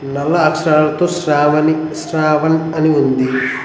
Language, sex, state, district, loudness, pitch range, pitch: Telugu, male, Telangana, Mahabubabad, -14 LUFS, 145-160 Hz, 155 Hz